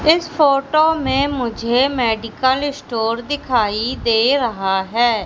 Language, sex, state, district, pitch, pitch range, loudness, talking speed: Hindi, female, Madhya Pradesh, Katni, 250 Hz, 225-280 Hz, -17 LUFS, 115 wpm